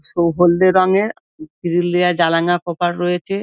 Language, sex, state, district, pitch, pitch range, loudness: Bengali, female, West Bengal, Dakshin Dinajpur, 175 Hz, 170-185 Hz, -16 LUFS